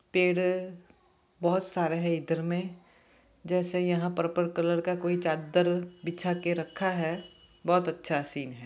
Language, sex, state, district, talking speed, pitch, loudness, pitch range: Hindi, male, Jharkhand, Jamtara, 145 wpm, 175 Hz, -29 LUFS, 170-180 Hz